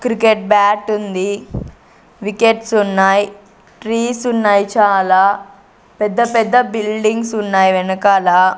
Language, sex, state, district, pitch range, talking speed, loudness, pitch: Telugu, female, Andhra Pradesh, Sri Satya Sai, 195-225 Hz, 90 wpm, -14 LUFS, 210 Hz